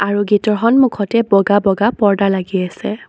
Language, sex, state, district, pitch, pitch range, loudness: Assamese, female, Assam, Sonitpur, 205 Hz, 200-215 Hz, -15 LUFS